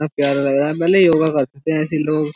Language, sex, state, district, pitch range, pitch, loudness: Hindi, male, Uttar Pradesh, Jyotiba Phule Nagar, 140-160 Hz, 155 Hz, -17 LUFS